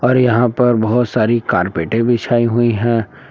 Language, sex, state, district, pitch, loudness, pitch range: Hindi, male, Jharkhand, Palamu, 120 Hz, -15 LUFS, 110-120 Hz